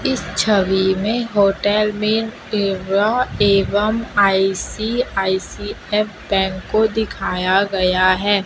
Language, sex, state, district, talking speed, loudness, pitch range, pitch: Hindi, female, Chhattisgarh, Raipur, 90 wpm, -18 LUFS, 190-215 Hz, 205 Hz